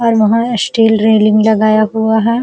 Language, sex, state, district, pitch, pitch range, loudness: Hindi, female, Uttar Pradesh, Jalaun, 220 Hz, 215-230 Hz, -11 LUFS